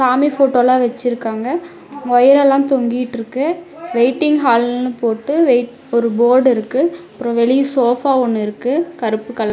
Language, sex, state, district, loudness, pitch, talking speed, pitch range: Tamil, female, Tamil Nadu, Namakkal, -15 LUFS, 250 Hz, 125 wpm, 235-280 Hz